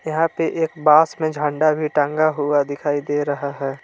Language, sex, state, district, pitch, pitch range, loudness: Hindi, male, Jharkhand, Palamu, 150 Hz, 145-155 Hz, -19 LUFS